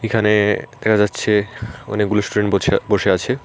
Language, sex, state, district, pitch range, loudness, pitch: Bengali, male, Tripura, Unakoti, 105-110 Hz, -18 LUFS, 105 Hz